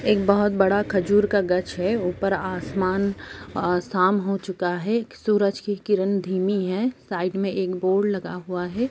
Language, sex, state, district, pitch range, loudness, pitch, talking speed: Hindi, female, Jharkhand, Sahebganj, 185-205 Hz, -23 LUFS, 195 Hz, 175 wpm